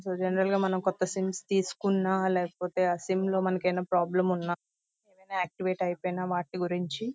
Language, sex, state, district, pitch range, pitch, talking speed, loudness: Telugu, female, Andhra Pradesh, Visakhapatnam, 180-190 Hz, 185 Hz, 160 wpm, -29 LUFS